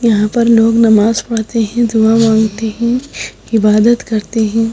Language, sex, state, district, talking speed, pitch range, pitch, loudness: Hindi, female, Odisha, Sambalpur, 150 wpm, 220-230 Hz, 225 Hz, -12 LUFS